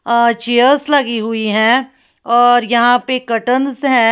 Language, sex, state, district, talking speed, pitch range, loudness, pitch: Hindi, female, Uttar Pradesh, Lalitpur, 145 wpm, 235-255 Hz, -13 LUFS, 245 Hz